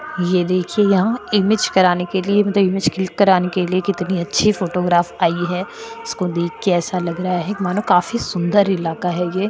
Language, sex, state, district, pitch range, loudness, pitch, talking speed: Hindi, female, Goa, North and South Goa, 175-205 Hz, -18 LUFS, 185 Hz, 185 wpm